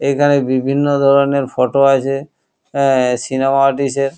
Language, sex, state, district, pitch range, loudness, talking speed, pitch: Bengali, male, West Bengal, Kolkata, 135-140 Hz, -14 LUFS, 130 wpm, 135 Hz